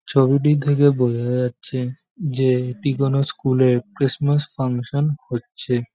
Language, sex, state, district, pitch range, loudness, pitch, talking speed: Bengali, male, West Bengal, Jhargram, 125-145 Hz, -20 LUFS, 130 Hz, 120 wpm